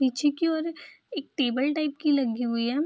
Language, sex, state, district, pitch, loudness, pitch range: Hindi, female, Bihar, Saharsa, 290 Hz, -27 LUFS, 255-310 Hz